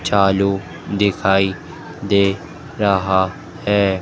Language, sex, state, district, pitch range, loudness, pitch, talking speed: Hindi, female, Madhya Pradesh, Dhar, 95-105 Hz, -18 LUFS, 100 Hz, 75 wpm